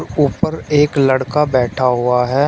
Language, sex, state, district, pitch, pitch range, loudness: Hindi, male, Uttar Pradesh, Shamli, 135 Hz, 125-150 Hz, -15 LUFS